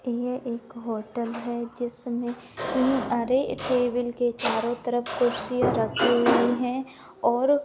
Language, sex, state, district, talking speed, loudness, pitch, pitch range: Hindi, female, Maharashtra, Pune, 120 wpm, -26 LUFS, 245 Hz, 235-250 Hz